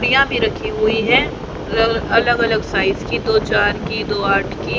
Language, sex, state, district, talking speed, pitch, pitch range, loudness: Hindi, female, Haryana, Charkhi Dadri, 190 wpm, 225 Hz, 210-240 Hz, -17 LUFS